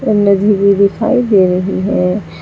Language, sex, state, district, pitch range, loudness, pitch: Hindi, female, Uttar Pradesh, Saharanpur, 190-210 Hz, -12 LUFS, 200 Hz